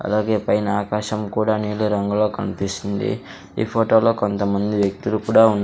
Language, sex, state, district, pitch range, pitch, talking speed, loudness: Telugu, male, Andhra Pradesh, Sri Satya Sai, 100-110 Hz, 105 Hz, 140 wpm, -20 LUFS